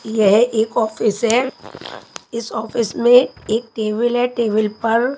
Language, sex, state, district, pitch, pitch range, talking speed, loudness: Hindi, female, Punjab, Kapurthala, 230 Hz, 220-240 Hz, 140 wpm, -17 LUFS